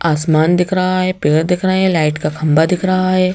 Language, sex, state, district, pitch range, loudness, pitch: Hindi, female, Madhya Pradesh, Bhopal, 155-185 Hz, -14 LUFS, 180 Hz